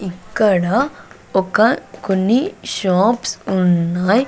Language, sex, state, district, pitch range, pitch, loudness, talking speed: Telugu, female, Andhra Pradesh, Sri Satya Sai, 185-230 Hz, 195 Hz, -17 LUFS, 70 wpm